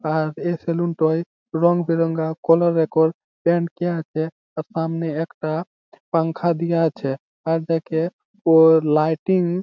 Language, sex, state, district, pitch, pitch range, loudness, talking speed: Bengali, male, West Bengal, Malda, 165 Hz, 160-170 Hz, -21 LUFS, 110 wpm